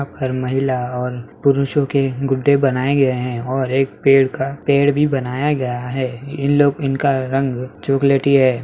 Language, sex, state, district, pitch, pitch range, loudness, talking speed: Hindi, male, Bihar, East Champaran, 135 Hz, 130-140 Hz, -18 LUFS, 175 wpm